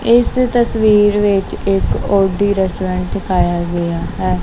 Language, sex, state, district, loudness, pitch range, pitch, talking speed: Punjabi, female, Punjab, Kapurthala, -15 LUFS, 175-210 Hz, 195 Hz, 120 wpm